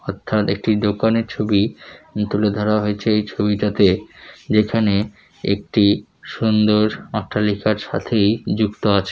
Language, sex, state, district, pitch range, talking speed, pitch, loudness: Bengali, male, West Bengal, Jalpaiguri, 105-110 Hz, 105 wpm, 105 Hz, -19 LUFS